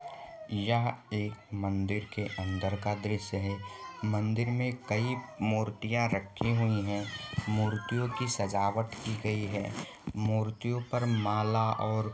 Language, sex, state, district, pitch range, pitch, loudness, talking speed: Hindi, male, Jharkhand, Sahebganj, 105-120 Hz, 110 Hz, -32 LUFS, 125 wpm